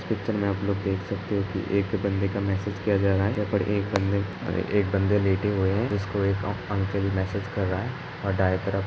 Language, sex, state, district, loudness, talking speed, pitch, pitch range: Hindi, male, Uttar Pradesh, Hamirpur, -26 LUFS, 255 wpm, 100 Hz, 95-100 Hz